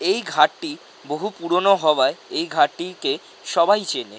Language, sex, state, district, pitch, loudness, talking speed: Bengali, male, West Bengal, North 24 Parganas, 215 Hz, -20 LUFS, 130 wpm